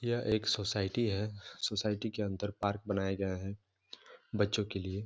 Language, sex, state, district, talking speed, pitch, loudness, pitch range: Hindi, male, Jharkhand, Jamtara, 165 wpm, 105 Hz, -35 LUFS, 100-105 Hz